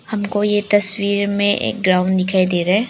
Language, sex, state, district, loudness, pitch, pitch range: Hindi, female, Arunachal Pradesh, Lower Dibang Valley, -17 LUFS, 200 Hz, 185-205 Hz